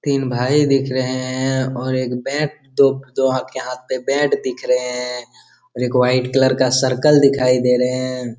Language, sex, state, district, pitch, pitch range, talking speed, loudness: Hindi, male, Jharkhand, Jamtara, 130 Hz, 125-135 Hz, 195 wpm, -18 LUFS